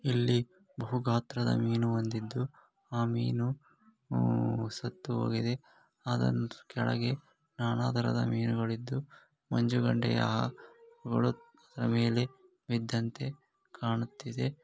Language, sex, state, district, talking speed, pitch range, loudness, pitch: Kannada, male, Karnataka, Shimoga, 70 wpm, 115-130 Hz, -33 LUFS, 120 Hz